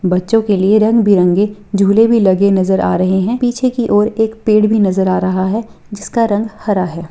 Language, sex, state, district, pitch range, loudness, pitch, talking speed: Hindi, female, Bihar, Purnia, 190-220 Hz, -13 LUFS, 205 Hz, 220 wpm